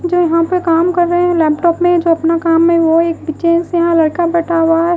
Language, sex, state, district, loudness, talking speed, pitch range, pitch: Hindi, female, Bihar, West Champaran, -13 LUFS, 265 wpm, 330-345 Hz, 335 Hz